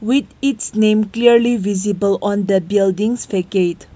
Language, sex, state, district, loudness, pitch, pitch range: English, female, Nagaland, Kohima, -16 LUFS, 205 Hz, 200-230 Hz